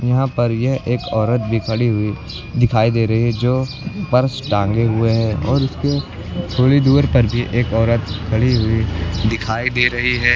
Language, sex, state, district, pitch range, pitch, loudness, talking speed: Hindi, male, Uttar Pradesh, Lucknow, 110-125 Hz, 115 Hz, -17 LUFS, 180 wpm